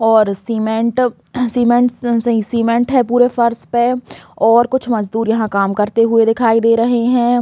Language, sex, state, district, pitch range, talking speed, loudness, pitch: Hindi, female, Chhattisgarh, Raigarh, 225-245 Hz, 160 wpm, -15 LUFS, 235 Hz